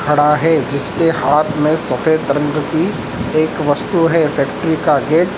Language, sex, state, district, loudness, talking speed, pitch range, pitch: Hindi, male, Madhya Pradesh, Dhar, -15 LUFS, 180 wpm, 145-165 Hz, 155 Hz